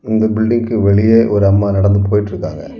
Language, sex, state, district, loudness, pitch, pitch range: Tamil, male, Tamil Nadu, Kanyakumari, -13 LUFS, 105 Hz, 100-110 Hz